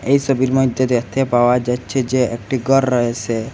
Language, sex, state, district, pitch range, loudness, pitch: Bengali, male, Assam, Hailakandi, 120-135 Hz, -17 LUFS, 125 Hz